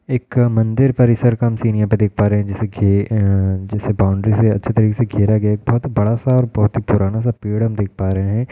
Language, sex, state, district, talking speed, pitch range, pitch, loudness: Hindi, male, Uttar Pradesh, Hamirpur, 280 wpm, 105-120 Hz, 110 Hz, -16 LUFS